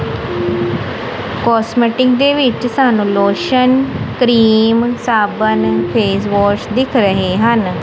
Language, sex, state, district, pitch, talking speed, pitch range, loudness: Punjabi, female, Punjab, Kapurthala, 220 Hz, 85 wpm, 200-245 Hz, -13 LUFS